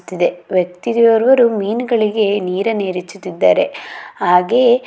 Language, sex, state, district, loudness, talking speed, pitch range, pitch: Kannada, female, Karnataka, Mysore, -15 LUFS, 60 wpm, 180-230 Hz, 205 Hz